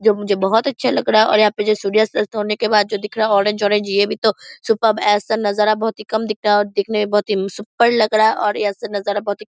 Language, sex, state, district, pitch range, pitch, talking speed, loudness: Hindi, female, Bihar, Purnia, 205-220 Hz, 210 Hz, 295 wpm, -17 LUFS